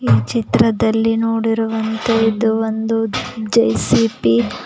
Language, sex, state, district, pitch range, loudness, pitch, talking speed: Kannada, female, Karnataka, Koppal, 220-225 Hz, -17 LUFS, 225 Hz, 75 wpm